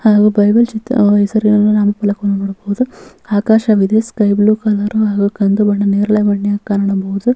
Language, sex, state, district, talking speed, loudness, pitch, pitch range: Kannada, female, Karnataka, Bellary, 145 wpm, -13 LUFS, 210 Hz, 205-215 Hz